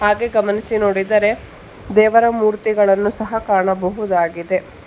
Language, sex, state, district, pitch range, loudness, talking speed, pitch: Kannada, female, Karnataka, Bangalore, 195-215 Hz, -17 LUFS, 85 wpm, 210 Hz